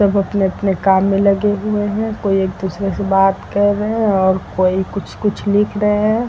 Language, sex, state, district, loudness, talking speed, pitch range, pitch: Hindi, female, Uttar Pradesh, Varanasi, -16 LUFS, 210 wpm, 195-210 Hz, 200 Hz